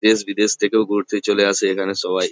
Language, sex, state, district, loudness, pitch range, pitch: Bengali, male, West Bengal, Jhargram, -18 LUFS, 100-105 Hz, 105 Hz